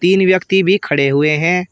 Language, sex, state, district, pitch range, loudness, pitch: Hindi, male, Uttar Pradesh, Shamli, 150-185 Hz, -14 LUFS, 180 Hz